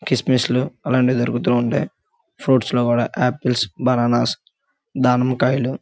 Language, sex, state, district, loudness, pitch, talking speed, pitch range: Telugu, male, Andhra Pradesh, Guntur, -19 LUFS, 125 Hz, 125 wpm, 120-130 Hz